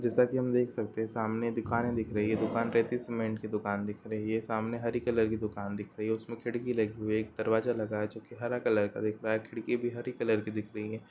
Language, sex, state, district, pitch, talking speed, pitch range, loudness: Hindi, male, Bihar, Sitamarhi, 110 Hz, 265 wpm, 110-120 Hz, -32 LUFS